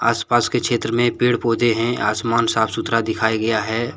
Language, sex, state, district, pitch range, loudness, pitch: Hindi, male, Jharkhand, Deoghar, 110-120 Hz, -19 LUFS, 115 Hz